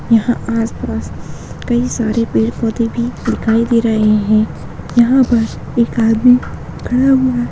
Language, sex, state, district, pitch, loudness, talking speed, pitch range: Hindi, female, Bihar, Purnia, 230 Hz, -14 LUFS, 135 wpm, 225-245 Hz